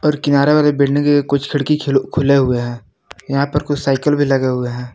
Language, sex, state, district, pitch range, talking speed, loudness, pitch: Hindi, male, Jharkhand, Palamu, 135-145 Hz, 230 wpm, -16 LUFS, 140 Hz